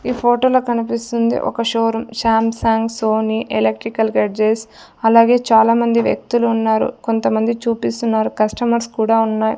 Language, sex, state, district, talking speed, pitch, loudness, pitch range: Telugu, female, Andhra Pradesh, Sri Satya Sai, 120 wpm, 225 Hz, -16 LUFS, 220-235 Hz